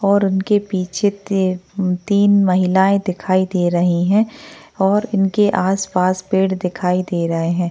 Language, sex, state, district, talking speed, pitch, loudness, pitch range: Hindi, female, Maharashtra, Chandrapur, 140 wpm, 190 Hz, -17 LUFS, 180-200 Hz